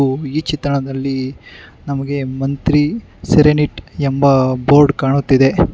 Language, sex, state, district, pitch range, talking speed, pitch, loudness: Kannada, male, Karnataka, Bangalore, 135-145 Hz, 95 wpm, 140 Hz, -15 LUFS